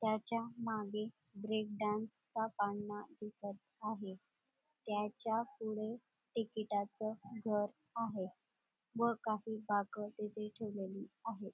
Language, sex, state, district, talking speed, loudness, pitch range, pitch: Marathi, female, Maharashtra, Dhule, 90 wpm, -41 LUFS, 205-225 Hz, 215 Hz